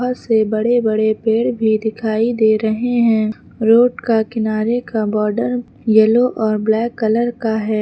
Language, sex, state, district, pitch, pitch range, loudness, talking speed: Hindi, female, Uttar Pradesh, Lucknow, 220 Hz, 220-235 Hz, -16 LUFS, 160 wpm